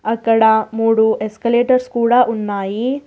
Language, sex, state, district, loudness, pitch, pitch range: Telugu, female, Telangana, Hyderabad, -15 LUFS, 225 Hz, 220-240 Hz